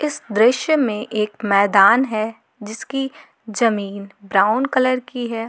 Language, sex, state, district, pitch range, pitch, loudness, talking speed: Hindi, female, Jharkhand, Garhwa, 210-255 Hz, 225 Hz, -18 LUFS, 130 wpm